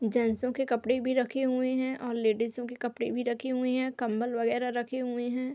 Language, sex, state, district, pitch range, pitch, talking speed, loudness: Hindi, female, Uttar Pradesh, Hamirpur, 240-255 Hz, 245 Hz, 215 wpm, -30 LUFS